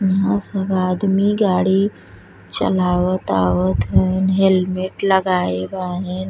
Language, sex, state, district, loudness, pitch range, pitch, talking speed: Bhojpuri, female, Uttar Pradesh, Deoria, -18 LUFS, 180-195 Hz, 185 Hz, 95 wpm